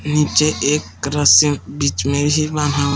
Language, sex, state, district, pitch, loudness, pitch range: Hindi, male, Jharkhand, Palamu, 145 Hz, -16 LUFS, 140-150 Hz